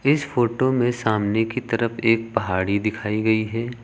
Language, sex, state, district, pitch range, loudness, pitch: Hindi, male, Uttar Pradesh, Lucknow, 110-120 Hz, -22 LUFS, 115 Hz